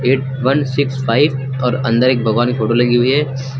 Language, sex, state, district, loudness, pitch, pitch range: Hindi, male, Uttar Pradesh, Lucknow, -15 LUFS, 130 Hz, 120-135 Hz